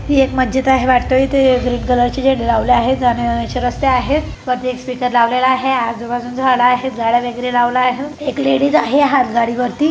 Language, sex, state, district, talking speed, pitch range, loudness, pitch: Marathi, male, Maharashtra, Pune, 195 wpm, 245-265 Hz, -15 LUFS, 255 Hz